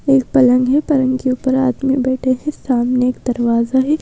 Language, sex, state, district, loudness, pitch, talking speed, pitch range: Hindi, female, Madhya Pradesh, Bhopal, -16 LUFS, 260 Hz, 195 wpm, 250-270 Hz